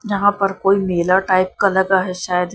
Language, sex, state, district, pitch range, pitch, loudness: Hindi, female, Punjab, Kapurthala, 185-195 Hz, 190 Hz, -17 LUFS